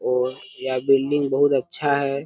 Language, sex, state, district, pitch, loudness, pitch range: Hindi, male, Jharkhand, Jamtara, 140 Hz, -22 LUFS, 130-145 Hz